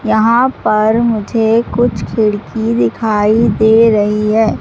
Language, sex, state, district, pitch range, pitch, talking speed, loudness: Hindi, female, Madhya Pradesh, Katni, 210-230 Hz, 220 Hz, 115 wpm, -12 LUFS